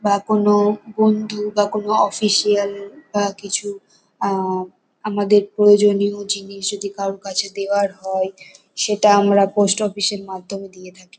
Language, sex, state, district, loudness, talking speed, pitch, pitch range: Bengali, female, West Bengal, North 24 Parganas, -18 LUFS, 135 wpm, 200 Hz, 195-210 Hz